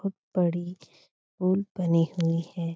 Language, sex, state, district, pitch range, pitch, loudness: Hindi, female, Bihar, Supaul, 165-185 Hz, 175 Hz, -27 LUFS